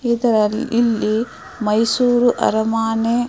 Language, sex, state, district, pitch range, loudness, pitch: Kannada, female, Karnataka, Mysore, 220-240 Hz, -17 LUFS, 225 Hz